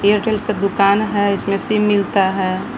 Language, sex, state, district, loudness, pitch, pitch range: Hindi, female, Jharkhand, Palamu, -17 LUFS, 200 Hz, 200-210 Hz